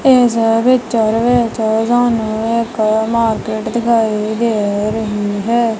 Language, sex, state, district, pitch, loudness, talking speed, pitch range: Punjabi, female, Punjab, Kapurthala, 225 Hz, -15 LUFS, 105 wpm, 215-235 Hz